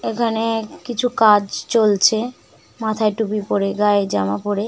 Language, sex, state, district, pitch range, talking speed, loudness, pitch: Bengali, female, West Bengal, Malda, 205-225 Hz, 130 wpm, -18 LUFS, 215 Hz